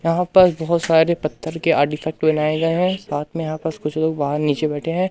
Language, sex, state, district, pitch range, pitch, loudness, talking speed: Hindi, male, Madhya Pradesh, Katni, 150-165 Hz, 160 Hz, -19 LUFS, 235 wpm